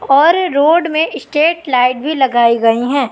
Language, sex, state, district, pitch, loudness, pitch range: Hindi, female, Madhya Pradesh, Katni, 280 Hz, -13 LUFS, 250-315 Hz